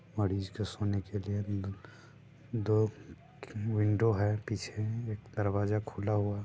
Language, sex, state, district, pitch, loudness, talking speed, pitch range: Hindi, male, Bihar, Sitamarhi, 105 Hz, -33 LUFS, 140 wpm, 100-115 Hz